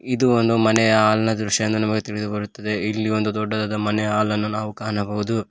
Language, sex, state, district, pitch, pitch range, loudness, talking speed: Kannada, male, Karnataka, Koppal, 110 Hz, 105-110 Hz, -21 LUFS, 165 wpm